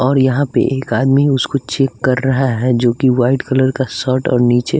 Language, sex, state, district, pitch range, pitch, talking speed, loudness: Hindi, male, Bihar, West Champaran, 125-135 Hz, 130 Hz, 235 wpm, -15 LUFS